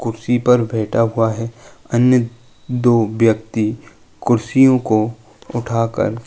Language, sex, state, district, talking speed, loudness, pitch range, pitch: Hindi, male, Uttar Pradesh, Jalaun, 125 wpm, -17 LUFS, 110-120 Hz, 115 Hz